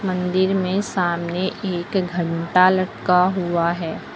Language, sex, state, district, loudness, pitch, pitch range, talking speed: Hindi, female, Uttar Pradesh, Lucknow, -20 LUFS, 180 Hz, 175-190 Hz, 115 wpm